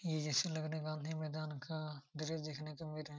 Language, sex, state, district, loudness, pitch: Hindi, male, Jharkhand, Jamtara, -42 LUFS, 155 Hz